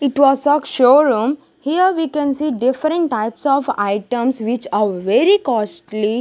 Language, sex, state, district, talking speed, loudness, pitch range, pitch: English, female, Punjab, Kapurthala, 145 wpm, -17 LUFS, 225-295 Hz, 275 Hz